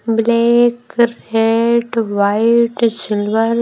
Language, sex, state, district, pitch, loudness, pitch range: Hindi, female, Himachal Pradesh, Shimla, 230 Hz, -15 LUFS, 225-235 Hz